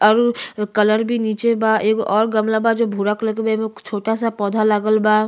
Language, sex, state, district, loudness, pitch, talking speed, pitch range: Bhojpuri, female, Uttar Pradesh, Ghazipur, -18 LUFS, 215 Hz, 225 wpm, 210-225 Hz